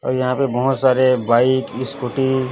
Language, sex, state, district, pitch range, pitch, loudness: Hindi, male, Chhattisgarh, Raipur, 125-130 Hz, 130 Hz, -18 LUFS